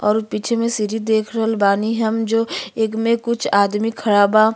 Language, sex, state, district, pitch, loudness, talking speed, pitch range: Bhojpuri, female, Uttar Pradesh, Gorakhpur, 220 Hz, -18 LUFS, 210 wpm, 210-225 Hz